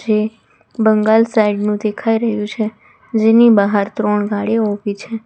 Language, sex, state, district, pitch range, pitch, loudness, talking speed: Gujarati, female, Gujarat, Valsad, 210-225 Hz, 215 Hz, -15 LUFS, 150 wpm